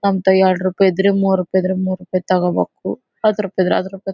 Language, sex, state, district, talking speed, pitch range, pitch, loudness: Kannada, female, Karnataka, Bellary, 215 wpm, 185-195 Hz, 190 Hz, -17 LUFS